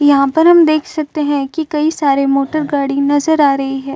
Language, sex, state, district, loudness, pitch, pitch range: Hindi, female, Uttar Pradesh, Muzaffarnagar, -13 LUFS, 290 Hz, 275-310 Hz